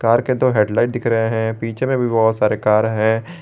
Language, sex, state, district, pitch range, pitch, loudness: Hindi, male, Jharkhand, Garhwa, 110-120 Hz, 115 Hz, -17 LUFS